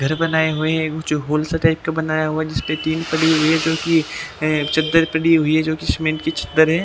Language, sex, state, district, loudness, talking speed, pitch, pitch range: Hindi, male, Haryana, Jhajjar, -18 LUFS, 165 wpm, 160 Hz, 155-160 Hz